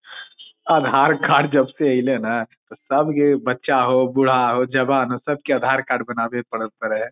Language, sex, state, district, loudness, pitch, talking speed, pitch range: Magahi, male, Bihar, Lakhisarai, -19 LUFS, 130 Hz, 170 wpm, 120-135 Hz